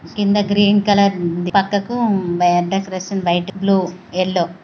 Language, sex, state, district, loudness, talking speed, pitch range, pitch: Telugu, female, Andhra Pradesh, Guntur, -17 LUFS, 105 wpm, 175-200 Hz, 190 Hz